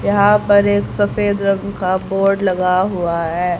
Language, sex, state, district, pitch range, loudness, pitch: Hindi, female, Haryana, Jhajjar, 185-205 Hz, -16 LUFS, 195 Hz